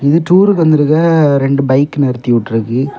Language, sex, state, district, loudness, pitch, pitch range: Tamil, male, Tamil Nadu, Kanyakumari, -11 LUFS, 140 Hz, 130-160 Hz